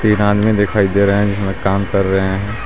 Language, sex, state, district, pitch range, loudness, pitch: Hindi, male, Jharkhand, Garhwa, 95-105 Hz, -15 LUFS, 100 Hz